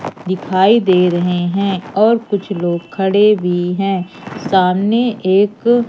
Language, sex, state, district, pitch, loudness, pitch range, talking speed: Hindi, female, Madhya Pradesh, Umaria, 195 Hz, -15 LUFS, 180-210 Hz, 120 wpm